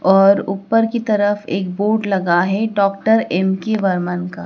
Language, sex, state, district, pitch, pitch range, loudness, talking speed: Hindi, female, Madhya Pradesh, Dhar, 195 Hz, 185-215 Hz, -17 LUFS, 160 wpm